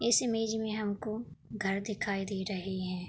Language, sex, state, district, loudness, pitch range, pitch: Hindi, female, Uttar Pradesh, Budaun, -34 LUFS, 195-220 Hz, 210 Hz